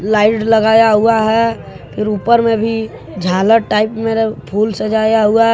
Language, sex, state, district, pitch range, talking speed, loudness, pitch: Hindi, male, Jharkhand, Deoghar, 210-225 Hz, 160 wpm, -13 LUFS, 220 Hz